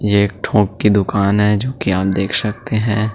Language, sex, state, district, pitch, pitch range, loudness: Hindi, male, Chhattisgarh, Sukma, 105 Hz, 100-105 Hz, -16 LUFS